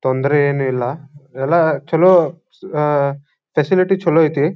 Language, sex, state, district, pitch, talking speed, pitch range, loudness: Kannada, male, Karnataka, Dharwad, 150 Hz, 130 wpm, 140-165 Hz, -16 LUFS